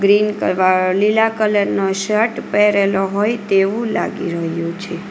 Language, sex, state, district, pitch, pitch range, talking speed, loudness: Gujarati, female, Gujarat, Valsad, 200 Hz, 185-210 Hz, 140 wpm, -17 LUFS